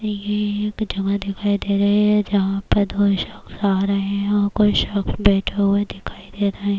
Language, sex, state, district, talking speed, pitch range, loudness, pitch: Urdu, female, Bihar, Kishanganj, 205 wpm, 200-205 Hz, -20 LUFS, 200 Hz